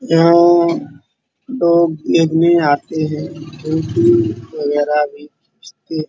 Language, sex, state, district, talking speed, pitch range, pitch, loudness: Hindi, male, Uttar Pradesh, Muzaffarnagar, 100 wpm, 145-170 Hz, 155 Hz, -15 LUFS